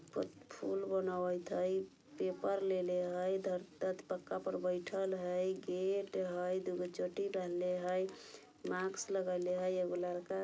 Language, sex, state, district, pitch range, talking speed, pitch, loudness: Bajjika, female, Bihar, Vaishali, 180-190 Hz, 125 wpm, 185 Hz, -39 LUFS